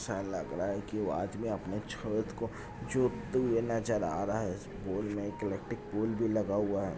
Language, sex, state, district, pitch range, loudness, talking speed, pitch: Hindi, male, Bihar, Jamui, 100-115 Hz, -34 LUFS, 205 wpm, 105 Hz